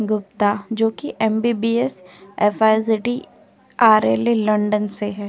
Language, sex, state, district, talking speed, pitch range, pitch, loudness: Hindi, female, Uttar Pradesh, Etah, 70 wpm, 205-225 Hz, 215 Hz, -19 LUFS